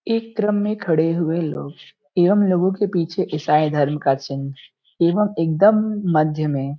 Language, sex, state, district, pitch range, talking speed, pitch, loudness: Hindi, male, Uttar Pradesh, Gorakhpur, 150-200 Hz, 170 wpm, 165 Hz, -19 LUFS